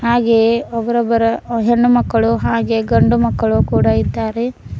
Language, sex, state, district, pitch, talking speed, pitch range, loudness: Kannada, female, Karnataka, Bidar, 230 Hz, 100 wpm, 220-235 Hz, -15 LUFS